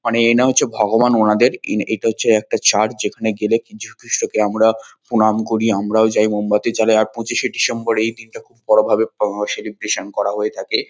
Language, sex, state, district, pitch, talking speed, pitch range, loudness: Bengali, male, West Bengal, Kolkata, 110 Hz, 195 wpm, 105-115 Hz, -17 LUFS